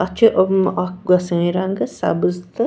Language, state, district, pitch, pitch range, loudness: Kashmiri, Punjab, Kapurthala, 185 Hz, 180-190 Hz, -18 LUFS